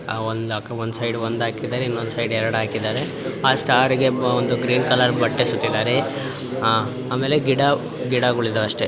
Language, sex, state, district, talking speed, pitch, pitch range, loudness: Kannada, female, Karnataka, Bijapur, 230 wpm, 120 Hz, 115-130 Hz, -21 LUFS